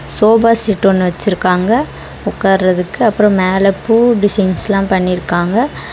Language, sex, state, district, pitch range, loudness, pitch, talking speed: Tamil, female, Tamil Nadu, Chennai, 185-225 Hz, -13 LUFS, 195 Hz, 100 wpm